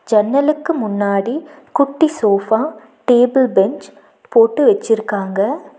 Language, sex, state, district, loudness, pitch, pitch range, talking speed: Tamil, female, Tamil Nadu, Nilgiris, -16 LUFS, 240 Hz, 210-295 Hz, 85 wpm